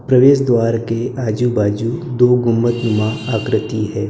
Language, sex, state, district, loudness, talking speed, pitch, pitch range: Hindi, male, Maharashtra, Gondia, -16 LUFS, 130 wpm, 115 Hz, 110-125 Hz